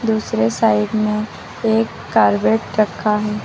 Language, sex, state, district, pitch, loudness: Hindi, female, Uttar Pradesh, Lucknow, 210 Hz, -18 LUFS